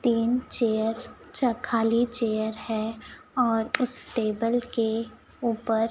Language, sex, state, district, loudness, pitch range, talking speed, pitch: Hindi, male, Chhattisgarh, Raipur, -26 LUFS, 225-245 Hz, 120 wpm, 230 Hz